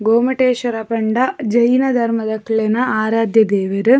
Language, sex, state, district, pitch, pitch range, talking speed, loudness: Tulu, female, Karnataka, Dakshina Kannada, 230 Hz, 220-250 Hz, 90 wpm, -16 LUFS